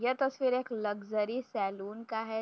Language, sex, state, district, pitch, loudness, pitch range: Hindi, female, Uttar Pradesh, Jyotiba Phule Nagar, 225 Hz, -34 LUFS, 210-250 Hz